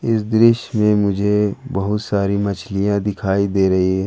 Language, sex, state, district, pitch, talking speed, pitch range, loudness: Hindi, male, Jharkhand, Ranchi, 100 Hz, 160 wpm, 100-105 Hz, -18 LUFS